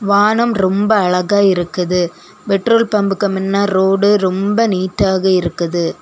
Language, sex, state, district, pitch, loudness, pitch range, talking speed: Tamil, female, Tamil Nadu, Kanyakumari, 195 Hz, -14 LUFS, 180-205 Hz, 110 wpm